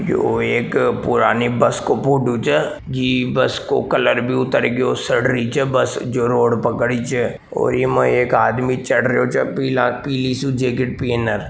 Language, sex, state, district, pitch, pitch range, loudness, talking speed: Marwari, male, Rajasthan, Nagaur, 125 Hz, 120-130 Hz, -18 LUFS, 190 wpm